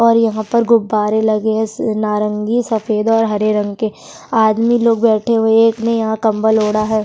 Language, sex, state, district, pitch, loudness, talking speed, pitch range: Hindi, female, Bihar, Kishanganj, 220 Hz, -15 LUFS, 195 wpm, 215-230 Hz